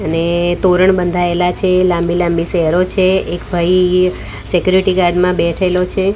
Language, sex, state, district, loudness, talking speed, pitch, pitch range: Gujarati, female, Gujarat, Gandhinagar, -14 LUFS, 135 wpm, 180 Hz, 175-185 Hz